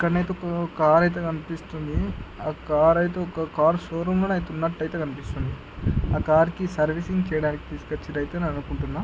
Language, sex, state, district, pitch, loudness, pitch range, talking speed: Telugu, male, Andhra Pradesh, Chittoor, 160 Hz, -25 LUFS, 155-175 Hz, 155 wpm